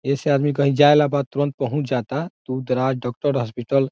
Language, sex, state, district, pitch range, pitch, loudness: Bhojpuri, male, Bihar, Saran, 130-145 Hz, 140 Hz, -20 LUFS